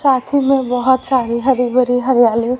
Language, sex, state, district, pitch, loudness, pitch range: Hindi, female, Haryana, Rohtak, 255 Hz, -15 LUFS, 245-265 Hz